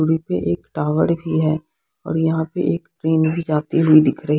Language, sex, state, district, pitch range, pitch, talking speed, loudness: Hindi, female, Odisha, Sambalpur, 150-160 Hz, 160 Hz, 205 wpm, -19 LUFS